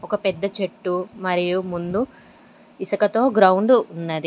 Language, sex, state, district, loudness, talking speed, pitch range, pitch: Telugu, female, Telangana, Mahabubabad, -21 LUFS, 110 wpm, 180-210 Hz, 190 Hz